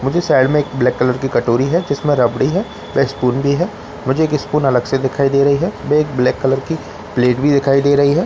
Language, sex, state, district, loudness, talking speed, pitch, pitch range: Hindi, male, Bihar, Katihar, -16 LUFS, 285 wpm, 135 Hz, 130-145 Hz